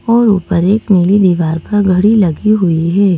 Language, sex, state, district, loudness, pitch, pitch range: Hindi, female, Madhya Pradesh, Bhopal, -11 LUFS, 195 Hz, 175-210 Hz